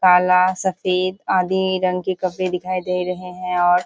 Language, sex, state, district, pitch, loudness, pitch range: Hindi, female, Bihar, Kishanganj, 185 Hz, -20 LUFS, 180-185 Hz